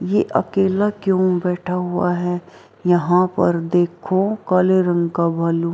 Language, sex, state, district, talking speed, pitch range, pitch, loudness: Hindi, female, Bihar, Araria, 135 wpm, 175-190 Hz, 180 Hz, -19 LUFS